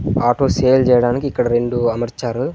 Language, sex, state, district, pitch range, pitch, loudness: Telugu, male, Andhra Pradesh, Sri Satya Sai, 120-130 Hz, 120 Hz, -16 LUFS